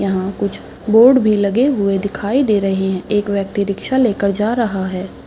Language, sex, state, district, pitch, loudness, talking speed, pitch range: Hindi, female, Bihar, Madhepura, 200 Hz, -16 LUFS, 205 wpm, 195-225 Hz